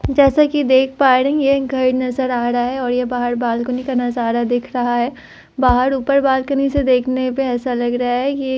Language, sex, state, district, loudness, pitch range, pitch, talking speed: Hindi, female, Bihar, Katihar, -17 LUFS, 245-270 Hz, 255 Hz, 225 wpm